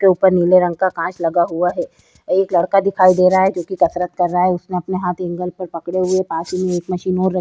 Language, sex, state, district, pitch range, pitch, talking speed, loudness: Hindi, female, Uttar Pradesh, Jyotiba Phule Nagar, 175-185 Hz, 180 Hz, 290 wpm, -17 LUFS